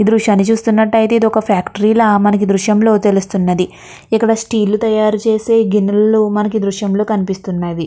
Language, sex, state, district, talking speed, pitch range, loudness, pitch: Telugu, female, Andhra Pradesh, Krishna, 135 wpm, 200-220 Hz, -13 LUFS, 210 Hz